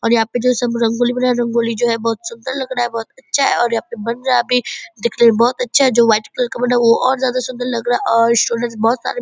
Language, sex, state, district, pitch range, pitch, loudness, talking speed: Hindi, female, Bihar, Purnia, 230-250 Hz, 240 Hz, -16 LUFS, 305 wpm